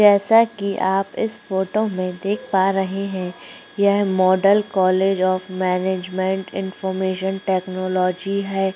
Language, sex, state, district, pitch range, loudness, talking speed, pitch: Hindi, female, Chhattisgarh, Korba, 185-200 Hz, -20 LUFS, 125 wpm, 190 Hz